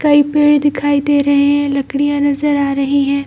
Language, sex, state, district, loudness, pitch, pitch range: Hindi, female, Bihar, Jamui, -14 LUFS, 285 Hz, 280-290 Hz